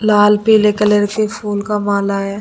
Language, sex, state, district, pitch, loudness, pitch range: Hindi, female, Delhi, New Delhi, 210 Hz, -14 LUFS, 205-210 Hz